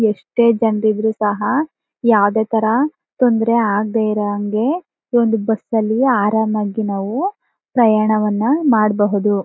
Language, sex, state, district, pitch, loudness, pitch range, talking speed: Kannada, female, Karnataka, Chamarajanagar, 220 Hz, -17 LUFS, 210-235 Hz, 100 wpm